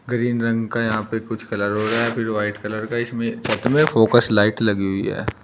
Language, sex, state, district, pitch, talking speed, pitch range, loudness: Hindi, male, Uttar Pradesh, Shamli, 115 Hz, 220 wpm, 105-115 Hz, -20 LUFS